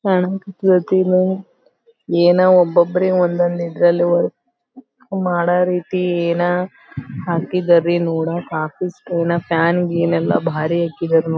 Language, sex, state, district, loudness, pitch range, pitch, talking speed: Kannada, female, Karnataka, Belgaum, -17 LUFS, 170-185 Hz, 175 Hz, 85 wpm